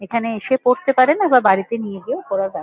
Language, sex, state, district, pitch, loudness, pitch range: Bengali, female, West Bengal, North 24 Parganas, 230 Hz, -17 LUFS, 195-255 Hz